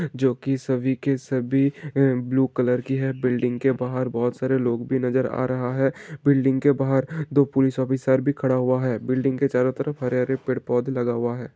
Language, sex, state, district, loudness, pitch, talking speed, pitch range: Hindi, male, Karnataka, Bijapur, -23 LUFS, 130 Hz, 220 wpm, 125-135 Hz